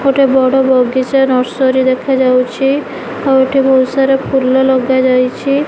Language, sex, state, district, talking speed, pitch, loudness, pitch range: Odia, female, Odisha, Nuapada, 115 wpm, 265 Hz, -12 LUFS, 255-270 Hz